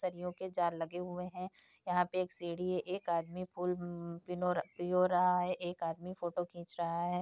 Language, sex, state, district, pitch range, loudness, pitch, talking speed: Hindi, female, Uttar Pradesh, Deoria, 175-180 Hz, -37 LUFS, 180 Hz, 200 wpm